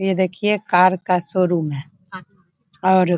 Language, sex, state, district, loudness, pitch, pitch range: Hindi, female, Bihar, Begusarai, -18 LUFS, 185 Hz, 175-185 Hz